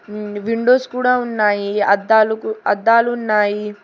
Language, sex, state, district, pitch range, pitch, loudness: Telugu, female, Telangana, Hyderabad, 210-240 Hz, 220 Hz, -16 LUFS